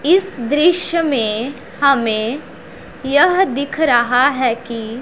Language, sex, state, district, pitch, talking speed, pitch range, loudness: Hindi, female, Punjab, Pathankot, 270 Hz, 110 wpm, 235-310 Hz, -16 LUFS